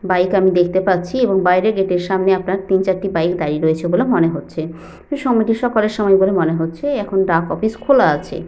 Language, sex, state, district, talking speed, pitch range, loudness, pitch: Bengali, female, West Bengal, Paschim Medinipur, 205 wpm, 175-215 Hz, -16 LUFS, 190 Hz